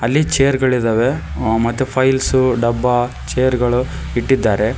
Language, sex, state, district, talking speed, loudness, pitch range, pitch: Kannada, male, Karnataka, Koppal, 125 wpm, -16 LUFS, 120-130 Hz, 125 Hz